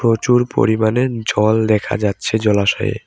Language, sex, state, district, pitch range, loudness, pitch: Bengali, male, West Bengal, Cooch Behar, 105-115 Hz, -16 LUFS, 110 Hz